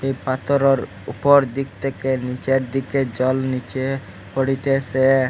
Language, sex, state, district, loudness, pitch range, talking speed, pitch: Bengali, male, Assam, Hailakandi, -21 LUFS, 130-135 Hz, 100 wpm, 135 Hz